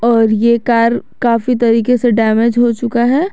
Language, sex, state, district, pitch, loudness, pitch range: Hindi, female, Jharkhand, Garhwa, 235 Hz, -13 LUFS, 230-240 Hz